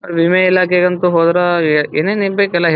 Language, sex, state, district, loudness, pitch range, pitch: Kannada, male, Karnataka, Dharwad, -13 LUFS, 170-185 Hz, 180 Hz